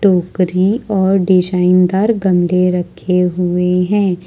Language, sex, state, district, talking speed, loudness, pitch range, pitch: Hindi, female, Jharkhand, Ranchi, 110 wpm, -14 LUFS, 180-190 Hz, 180 Hz